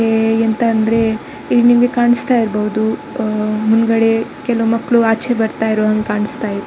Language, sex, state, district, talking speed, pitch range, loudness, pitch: Kannada, female, Karnataka, Dakshina Kannada, 145 wpm, 220-235 Hz, -15 LUFS, 225 Hz